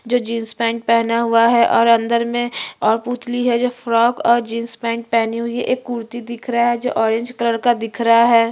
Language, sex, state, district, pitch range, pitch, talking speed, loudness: Hindi, female, Chhattisgarh, Bastar, 230-240 Hz, 235 Hz, 135 wpm, -17 LUFS